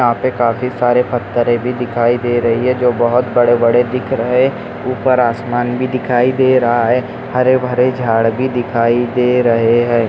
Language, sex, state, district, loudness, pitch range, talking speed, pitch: Hindi, male, Maharashtra, Dhule, -14 LUFS, 120-125 Hz, 175 wpm, 120 Hz